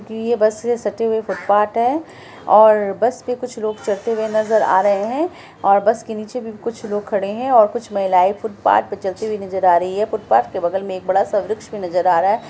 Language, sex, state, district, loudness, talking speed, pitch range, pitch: Hindi, female, Bihar, Araria, -18 LUFS, 230 wpm, 200-230 Hz, 215 Hz